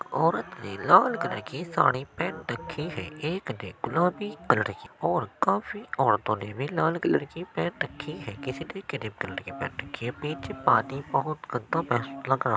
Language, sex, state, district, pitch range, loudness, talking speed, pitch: Hindi, male, Uttar Pradesh, Jyotiba Phule Nagar, 120-155 Hz, -28 LUFS, 185 wpm, 135 Hz